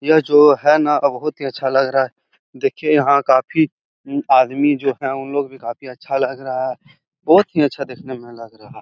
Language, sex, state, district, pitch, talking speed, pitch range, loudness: Hindi, male, Bihar, Jahanabad, 140 Hz, 230 wpm, 130-150 Hz, -17 LUFS